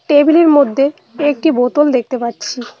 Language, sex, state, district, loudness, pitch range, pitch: Bengali, female, West Bengal, Cooch Behar, -13 LUFS, 245-295 Hz, 275 Hz